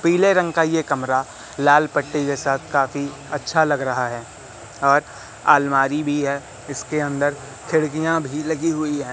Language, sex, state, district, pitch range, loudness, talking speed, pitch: Hindi, male, Madhya Pradesh, Katni, 140-155 Hz, -20 LUFS, 160 wpm, 145 Hz